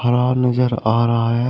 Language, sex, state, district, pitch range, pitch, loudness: Hindi, male, Uttar Pradesh, Shamli, 115-125 Hz, 120 Hz, -17 LUFS